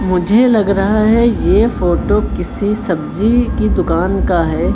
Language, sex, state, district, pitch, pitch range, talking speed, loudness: Hindi, male, Chhattisgarh, Raipur, 215 Hz, 195-230 Hz, 150 wpm, -14 LUFS